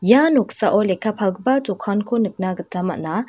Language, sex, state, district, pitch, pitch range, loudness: Garo, female, Meghalaya, West Garo Hills, 210 Hz, 185-230 Hz, -19 LUFS